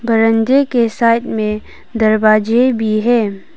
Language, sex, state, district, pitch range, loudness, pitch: Hindi, female, Arunachal Pradesh, Papum Pare, 215-235 Hz, -14 LUFS, 225 Hz